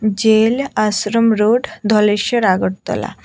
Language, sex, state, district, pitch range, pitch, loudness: Bengali, female, Tripura, West Tripura, 210-230 Hz, 220 Hz, -15 LUFS